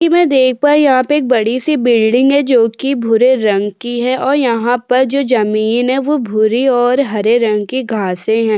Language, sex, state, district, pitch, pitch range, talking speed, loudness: Hindi, female, Uttarakhand, Tehri Garhwal, 245 Hz, 225-270 Hz, 205 wpm, -13 LUFS